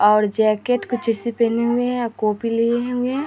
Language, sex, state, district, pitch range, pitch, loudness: Hindi, female, Bihar, Vaishali, 220-245 Hz, 235 Hz, -20 LUFS